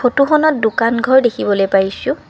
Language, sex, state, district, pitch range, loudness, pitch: Assamese, female, Assam, Kamrup Metropolitan, 215-275 Hz, -14 LUFS, 245 Hz